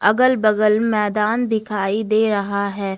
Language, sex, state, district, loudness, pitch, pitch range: Hindi, female, Jharkhand, Ranchi, -18 LUFS, 210 Hz, 200-220 Hz